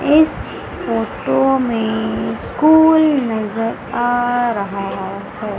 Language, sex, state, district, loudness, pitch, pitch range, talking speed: Hindi, female, Madhya Pradesh, Umaria, -17 LUFS, 230 Hz, 215-270 Hz, 85 wpm